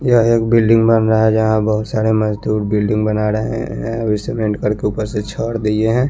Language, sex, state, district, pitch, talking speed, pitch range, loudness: Hindi, male, Chandigarh, Chandigarh, 110 Hz, 215 wpm, 105-115 Hz, -16 LUFS